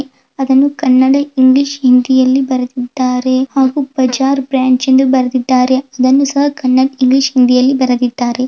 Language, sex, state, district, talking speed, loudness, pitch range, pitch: Kannada, female, Karnataka, Belgaum, 115 wpm, -12 LUFS, 255-270 Hz, 260 Hz